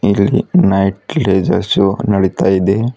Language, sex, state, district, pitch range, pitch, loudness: Kannada, female, Karnataka, Bidar, 95-110 Hz, 100 Hz, -14 LUFS